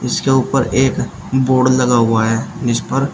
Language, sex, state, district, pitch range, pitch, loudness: Hindi, male, Uttar Pradesh, Shamli, 115-135 Hz, 130 Hz, -15 LUFS